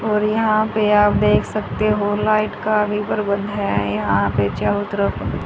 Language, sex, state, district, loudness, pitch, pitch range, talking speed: Hindi, female, Haryana, Rohtak, -19 LUFS, 210 Hz, 200-215 Hz, 175 wpm